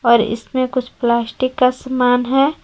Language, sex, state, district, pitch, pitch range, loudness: Hindi, female, Jharkhand, Palamu, 255 Hz, 235-255 Hz, -17 LUFS